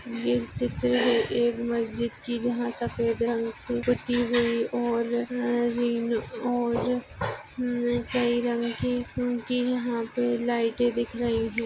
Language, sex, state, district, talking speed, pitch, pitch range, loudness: Hindi, female, Maharashtra, Nagpur, 135 wpm, 240 Hz, 230-245 Hz, -27 LUFS